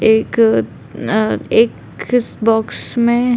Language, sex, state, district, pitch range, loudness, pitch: Hindi, female, Uttar Pradesh, Deoria, 220-235 Hz, -15 LUFS, 225 Hz